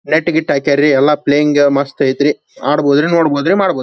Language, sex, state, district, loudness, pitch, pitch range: Kannada, male, Karnataka, Belgaum, -13 LUFS, 145 Hz, 140-155 Hz